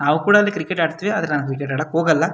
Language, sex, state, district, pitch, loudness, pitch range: Kannada, male, Karnataka, Shimoga, 160 Hz, -19 LUFS, 150-185 Hz